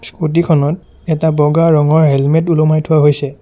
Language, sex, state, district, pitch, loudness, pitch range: Assamese, male, Assam, Sonitpur, 155 Hz, -12 LUFS, 145-160 Hz